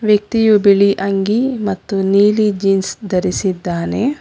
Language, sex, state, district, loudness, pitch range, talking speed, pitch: Kannada, female, Karnataka, Bangalore, -15 LUFS, 195-215 Hz, 100 wpm, 200 Hz